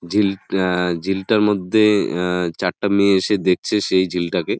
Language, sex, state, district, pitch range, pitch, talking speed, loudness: Bengali, male, West Bengal, Jalpaiguri, 90-105 Hz, 95 Hz, 155 wpm, -18 LUFS